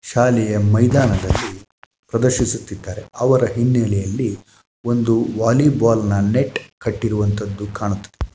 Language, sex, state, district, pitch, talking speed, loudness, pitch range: Kannada, male, Karnataka, Shimoga, 110 Hz, 80 wpm, -18 LUFS, 100-120 Hz